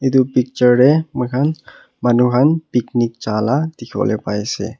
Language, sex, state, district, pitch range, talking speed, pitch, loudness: Nagamese, male, Nagaland, Kohima, 120-135 Hz, 150 wpm, 125 Hz, -17 LUFS